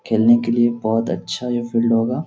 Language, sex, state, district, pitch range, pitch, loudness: Hindi, male, Bihar, Lakhisarai, 115-120 Hz, 115 Hz, -18 LUFS